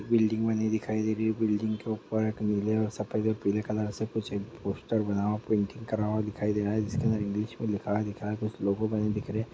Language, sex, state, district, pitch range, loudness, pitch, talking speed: Hindi, male, Bihar, Araria, 105-110 Hz, -30 LUFS, 110 Hz, 250 wpm